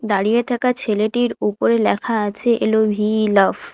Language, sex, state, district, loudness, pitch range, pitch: Bengali, female, West Bengal, Alipurduar, -18 LUFS, 205-235 Hz, 215 Hz